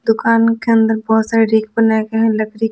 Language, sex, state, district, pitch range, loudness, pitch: Hindi, female, Bihar, Patna, 220-225 Hz, -14 LUFS, 225 Hz